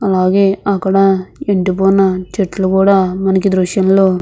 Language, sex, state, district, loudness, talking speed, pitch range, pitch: Telugu, female, Andhra Pradesh, Visakhapatnam, -13 LUFS, 130 wpm, 185-195 Hz, 190 Hz